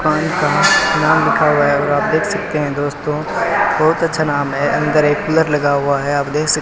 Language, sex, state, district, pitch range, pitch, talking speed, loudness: Hindi, male, Rajasthan, Bikaner, 145-160 Hz, 150 Hz, 225 wpm, -15 LUFS